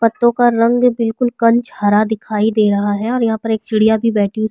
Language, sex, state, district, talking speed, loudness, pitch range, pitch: Hindi, female, Chhattisgarh, Sukma, 240 wpm, -15 LUFS, 215-235 Hz, 225 Hz